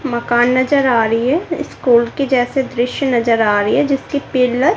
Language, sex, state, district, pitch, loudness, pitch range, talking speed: Hindi, female, Bihar, Kaimur, 250 Hz, -15 LUFS, 235-275 Hz, 200 wpm